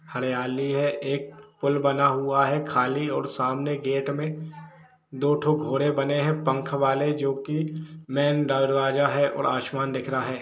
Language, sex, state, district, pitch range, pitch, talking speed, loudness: Hindi, male, Jharkhand, Jamtara, 135-145 Hz, 140 Hz, 165 wpm, -25 LUFS